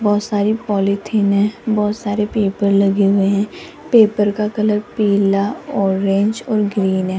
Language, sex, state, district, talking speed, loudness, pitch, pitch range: Hindi, female, Rajasthan, Jaipur, 150 wpm, -17 LUFS, 205 Hz, 200-215 Hz